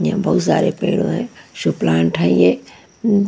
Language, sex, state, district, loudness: Hindi, female, Punjab, Pathankot, -17 LUFS